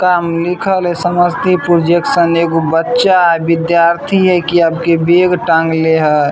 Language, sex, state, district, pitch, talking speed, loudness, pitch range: Maithili, male, Bihar, Samastipur, 170 Hz, 160 wpm, -12 LUFS, 165-180 Hz